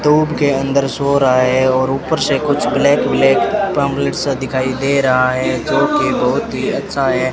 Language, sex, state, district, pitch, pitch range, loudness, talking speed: Hindi, male, Rajasthan, Bikaner, 135 Hz, 130-140 Hz, -15 LUFS, 195 wpm